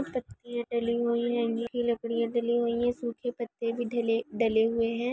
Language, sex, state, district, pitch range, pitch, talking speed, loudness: Hindi, female, Maharashtra, Solapur, 230-240 Hz, 235 Hz, 185 wpm, -29 LUFS